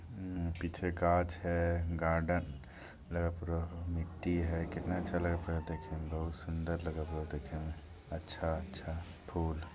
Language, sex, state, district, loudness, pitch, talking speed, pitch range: Hindi, male, Bihar, Jamui, -37 LUFS, 85 Hz, 130 wpm, 80-85 Hz